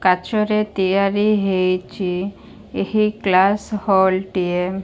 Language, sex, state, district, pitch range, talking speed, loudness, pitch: Odia, female, Odisha, Malkangiri, 185-210 Hz, 100 wpm, -19 LUFS, 195 Hz